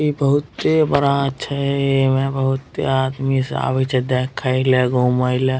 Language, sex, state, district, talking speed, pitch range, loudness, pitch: Maithili, male, Bihar, Madhepura, 140 wpm, 130-140 Hz, -18 LUFS, 135 Hz